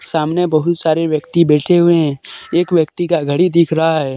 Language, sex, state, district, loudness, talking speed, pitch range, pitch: Hindi, male, Jharkhand, Deoghar, -14 LUFS, 200 wpm, 155-170 Hz, 165 Hz